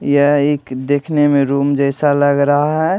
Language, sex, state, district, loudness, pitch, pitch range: Hindi, male, Delhi, New Delhi, -14 LUFS, 145 Hz, 140-145 Hz